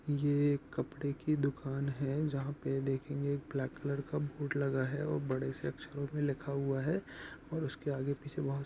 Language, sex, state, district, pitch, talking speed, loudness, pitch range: Hindi, male, Bihar, Saharsa, 140 Hz, 195 wpm, -36 LUFS, 135-145 Hz